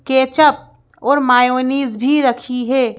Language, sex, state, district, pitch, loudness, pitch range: Hindi, female, Madhya Pradesh, Bhopal, 260 Hz, -15 LUFS, 250-275 Hz